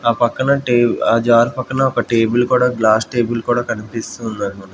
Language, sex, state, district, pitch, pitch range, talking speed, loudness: Telugu, male, Andhra Pradesh, Manyam, 120 Hz, 115-120 Hz, 175 wpm, -16 LUFS